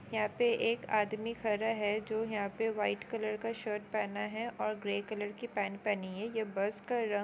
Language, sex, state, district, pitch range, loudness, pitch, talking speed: Hindi, female, West Bengal, Kolkata, 205-225 Hz, -35 LUFS, 215 Hz, 225 wpm